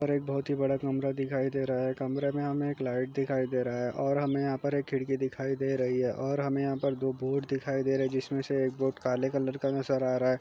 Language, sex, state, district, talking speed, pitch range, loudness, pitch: Hindi, male, Chhattisgarh, Jashpur, 295 wpm, 130-140 Hz, -31 LUFS, 135 Hz